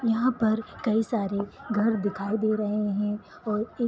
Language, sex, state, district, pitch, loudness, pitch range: Hindi, female, Jharkhand, Sahebganj, 215 Hz, -27 LUFS, 210-225 Hz